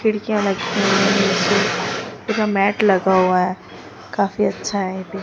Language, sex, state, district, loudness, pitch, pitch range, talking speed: Hindi, female, Chhattisgarh, Raipur, -18 LUFS, 195 Hz, 195-210 Hz, 135 wpm